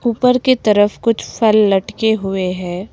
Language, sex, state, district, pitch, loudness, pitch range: Hindi, female, Assam, Kamrup Metropolitan, 215 Hz, -15 LUFS, 195-230 Hz